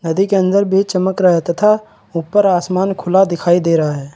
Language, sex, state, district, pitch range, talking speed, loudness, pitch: Hindi, male, Chhattisgarh, Raigarh, 170-195 Hz, 215 wpm, -14 LUFS, 185 Hz